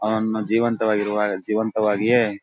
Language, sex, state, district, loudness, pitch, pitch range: Kannada, male, Karnataka, Bellary, -21 LUFS, 110 Hz, 105-110 Hz